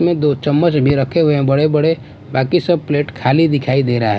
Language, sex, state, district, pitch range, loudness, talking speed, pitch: Hindi, male, Bihar, West Champaran, 135-160 Hz, -15 LUFS, 230 wpm, 145 Hz